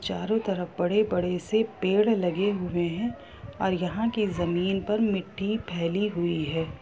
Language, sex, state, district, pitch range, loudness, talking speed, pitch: Hindi, female, Bihar, Gopalganj, 175-210 Hz, -27 LUFS, 165 wpm, 190 Hz